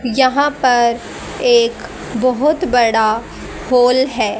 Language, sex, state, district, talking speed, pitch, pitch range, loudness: Hindi, female, Haryana, Rohtak, 95 wpm, 250 Hz, 240-285 Hz, -15 LUFS